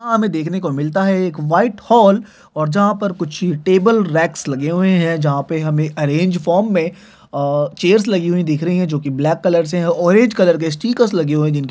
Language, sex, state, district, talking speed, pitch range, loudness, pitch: Hindi, male, Chhattisgarh, Bilaspur, 215 wpm, 155-195 Hz, -16 LUFS, 175 Hz